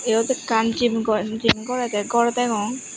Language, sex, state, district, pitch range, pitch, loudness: Chakma, female, Tripura, West Tripura, 225-245 Hz, 230 Hz, -21 LUFS